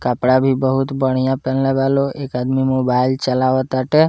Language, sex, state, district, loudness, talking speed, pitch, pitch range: Bhojpuri, male, Bihar, Muzaffarpur, -17 LUFS, 175 wpm, 130 Hz, 130-135 Hz